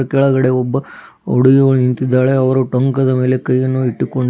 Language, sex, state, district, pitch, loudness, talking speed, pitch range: Kannada, female, Karnataka, Bidar, 130 Hz, -14 LUFS, 125 wpm, 125-135 Hz